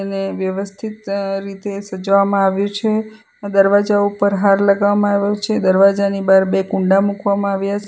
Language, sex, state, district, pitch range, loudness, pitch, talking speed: Gujarati, female, Gujarat, Valsad, 195-205 Hz, -16 LUFS, 200 Hz, 145 wpm